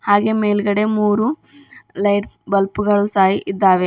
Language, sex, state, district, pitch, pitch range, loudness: Kannada, female, Karnataka, Bidar, 205 Hz, 200-210 Hz, -17 LUFS